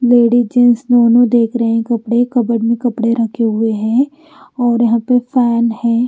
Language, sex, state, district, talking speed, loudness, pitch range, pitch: Hindi, female, Bihar, Patna, 160 wpm, -13 LUFS, 230-245 Hz, 235 Hz